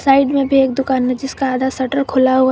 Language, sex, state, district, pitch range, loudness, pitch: Hindi, female, Jharkhand, Garhwa, 260-270 Hz, -16 LUFS, 265 Hz